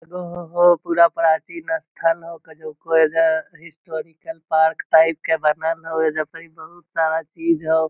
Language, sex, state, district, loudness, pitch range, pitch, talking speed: Magahi, male, Bihar, Lakhisarai, -20 LUFS, 160-170 Hz, 165 Hz, 165 wpm